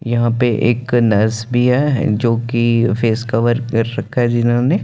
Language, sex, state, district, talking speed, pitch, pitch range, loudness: Hindi, male, Chandigarh, Chandigarh, 160 wpm, 120 Hz, 115-120 Hz, -16 LUFS